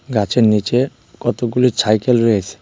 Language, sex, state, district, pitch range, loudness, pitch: Bengali, male, Tripura, West Tripura, 105-125 Hz, -16 LUFS, 115 Hz